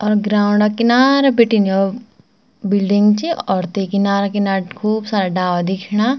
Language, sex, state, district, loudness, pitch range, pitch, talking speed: Garhwali, female, Uttarakhand, Tehri Garhwal, -16 LUFS, 195-220 Hz, 210 Hz, 145 wpm